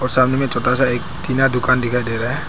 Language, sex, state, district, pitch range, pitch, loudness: Hindi, male, Arunachal Pradesh, Papum Pare, 125-135 Hz, 130 Hz, -17 LUFS